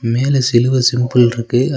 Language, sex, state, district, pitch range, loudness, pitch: Tamil, male, Tamil Nadu, Nilgiris, 120-130 Hz, -14 LUFS, 125 Hz